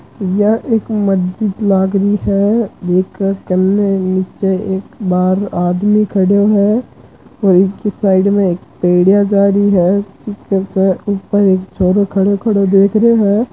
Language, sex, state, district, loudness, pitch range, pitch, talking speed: Marwari, male, Rajasthan, Churu, -13 LUFS, 190-205 Hz, 195 Hz, 140 wpm